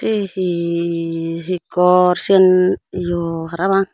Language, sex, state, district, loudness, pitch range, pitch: Chakma, female, Tripura, Unakoti, -17 LUFS, 170-185 Hz, 180 Hz